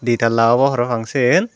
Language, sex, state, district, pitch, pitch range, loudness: Chakma, female, Tripura, Dhalai, 120 Hz, 115-135 Hz, -16 LUFS